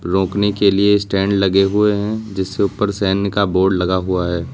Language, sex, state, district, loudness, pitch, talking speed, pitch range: Hindi, male, Uttar Pradesh, Lucknow, -17 LUFS, 100 Hz, 200 wpm, 95-100 Hz